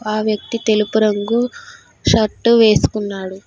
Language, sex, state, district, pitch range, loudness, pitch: Telugu, female, Telangana, Hyderabad, 210-230 Hz, -16 LUFS, 215 Hz